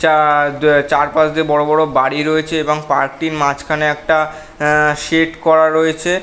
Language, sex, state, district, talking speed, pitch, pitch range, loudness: Bengali, male, West Bengal, North 24 Parganas, 155 wpm, 155 Hz, 150-160 Hz, -14 LUFS